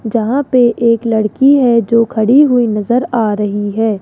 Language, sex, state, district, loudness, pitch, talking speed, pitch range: Hindi, female, Rajasthan, Jaipur, -12 LUFS, 230 Hz, 180 wpm, 220-245 Hz